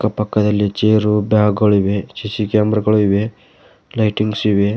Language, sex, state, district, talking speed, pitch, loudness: Kannada, male, Karnataka, Koppal, 125 wpm, 105 Hz, -16 LUFS